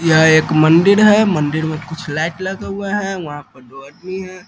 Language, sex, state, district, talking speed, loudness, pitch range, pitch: Hindi, male, Bihar, East Champaran, 215 wpm, -15 LUFS, 155-190 Hz, 165 Hz